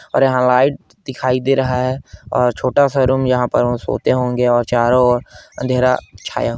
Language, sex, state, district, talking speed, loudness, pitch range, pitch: Hindi, male, Chhattisgarh, Korba, 175 wpm, -16 LUFS, 125-130 Hz, 125 Hz